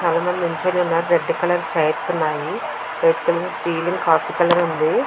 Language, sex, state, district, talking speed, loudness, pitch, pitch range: Telugu, female, Andhra Pradesh, Visakhapatnam, 130 wpm, -20 LUFS, 175 Hz, 165-180 Hz